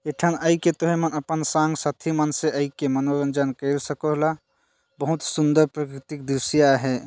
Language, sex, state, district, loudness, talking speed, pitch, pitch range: Chhattisgarhi, male, Chhattisgarh, Jashpur, -23 LUFS, 180 wpm, 150 Hz, 140-155 Hz